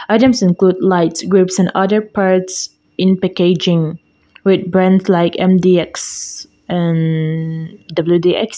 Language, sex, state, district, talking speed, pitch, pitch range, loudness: English, female, Mizoram, Aizawl, 105 wpm, 185 Hz, 175-190 Hz, -14 LUFS